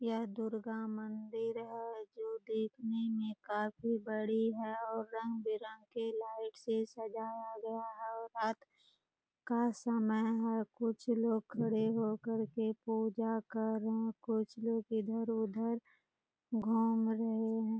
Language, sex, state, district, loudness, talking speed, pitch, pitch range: Hindi, female, Bihar, Purnia, -38 LUFS, 130 wpm, 225 Hz, 220-230 Hz